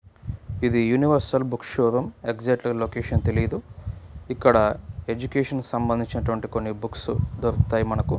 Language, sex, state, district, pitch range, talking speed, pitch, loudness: Telugu, male, Andhra Pradesh, Anantapur, 110-120 Hz, 115 wpm, 115 Hz, -24 LUFS